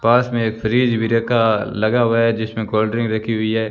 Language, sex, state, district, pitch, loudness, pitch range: Hindi, male, Rajasthan, Bikaner, 115 Hz, -18 LUFS, 110-115 Hz